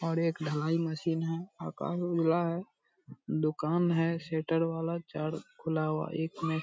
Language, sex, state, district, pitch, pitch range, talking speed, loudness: Hindi, male, Bihar, Purnia, 165 Hz, 160-170 Hz, 170 wpm, -32 LUFS